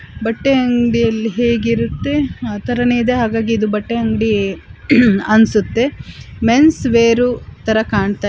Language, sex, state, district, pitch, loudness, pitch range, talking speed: Kannada, female, Karnataka, Chamarajanagar, 230 Hz, -15 LUFS, 220-245 Hz, 115 wpm